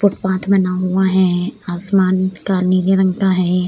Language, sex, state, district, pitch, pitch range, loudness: Hindi, female, Bihar, Samastipur, 185 Hz, 185-190 Hz, -16 LUFS